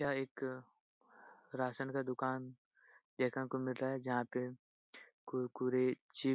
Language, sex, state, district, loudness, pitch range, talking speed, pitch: Hindi, male, Bihar, Jahanabad, -40 LUFS, 125-130 Hz, 140 wpm, 130 Hz